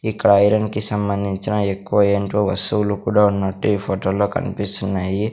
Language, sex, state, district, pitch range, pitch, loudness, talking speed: Telugu, male, Andhra Pradesh, Sri Satya Sai, 100-105 Hz, 100 Hz, -19 LUFS, 145 wpm